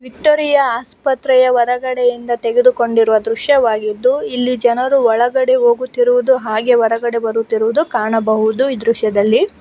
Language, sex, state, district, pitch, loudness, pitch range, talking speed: Kannada, female, Karnataka, Bangalore, 245 Hz, -14 LUFS, 225-265 Hz, 95 wpm